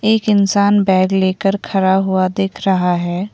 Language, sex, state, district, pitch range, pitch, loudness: Hindi, female, Assam, Kamrup Metropolitan, 185-200 Hz, 195 Hz, -15 LUFS